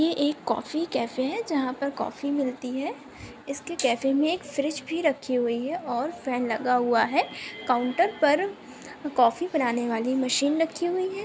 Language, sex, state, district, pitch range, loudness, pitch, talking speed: Hindi, female, Andhra Pradesh, Chittoor, 250-320 Hz, -26 LUFS, 280 Hz, 175 wpm